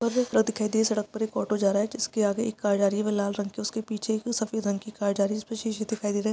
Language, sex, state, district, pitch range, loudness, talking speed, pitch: Hindi, female, Maharashtra, Sindhudurg, 205-220 Hz, -27 LUFS, 305 wpm, 215 Hz